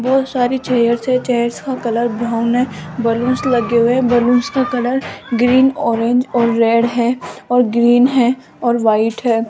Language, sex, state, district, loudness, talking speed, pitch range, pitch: Hindi, female, Rajasthan, Jaipur, -15 LUFS, 165 wpm, 235-250 Hz, 240 Hz